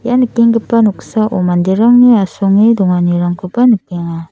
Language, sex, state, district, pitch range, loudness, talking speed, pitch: Garo, female, Meghalaya, South Garo Hills, 180-230 Hz, -11 LUFS, 95 wpm, 210 Hz